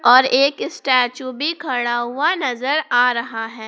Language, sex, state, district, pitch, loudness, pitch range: Hindi, female, Jharkhand, Palamu, 255 Hz, -18 LUFS, 240-285 Hz